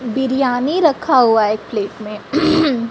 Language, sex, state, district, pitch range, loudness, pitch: Hindi, female, Chhattisgarh, Raipur, 215-290 Hz, -16 LUFS, 255 Hz